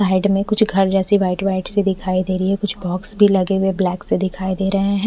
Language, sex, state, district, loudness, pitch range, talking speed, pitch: Hindi, female, Punjab, Fazilka, -18 LUFS, 185-200 Hz, 270 wpm, 195 Hz